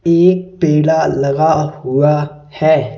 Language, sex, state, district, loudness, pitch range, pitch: Hindi, male, Madhya Pradesh, Bhopal, -14 LUFS, 150-160 Hz, 150 Hz